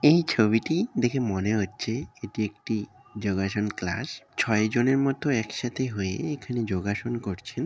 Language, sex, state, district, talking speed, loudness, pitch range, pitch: Bengali, male, West Bengal, Dakshin Dinajpur, 140 wpm, -27 LUFS, 105-130 Hz, 115 Hz